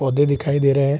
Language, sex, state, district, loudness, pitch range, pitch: Hindi, male, Bihar, Saharsa, -18 LUFS, 140-145 Hz, 140 Hz